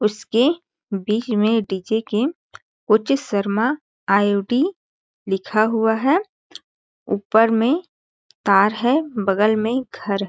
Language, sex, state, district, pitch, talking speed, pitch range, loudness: Hindi, female, Chhattisgarh, Balrampur, 225 Hz, 110 wpm, 205-265 Hz, -20 LUFS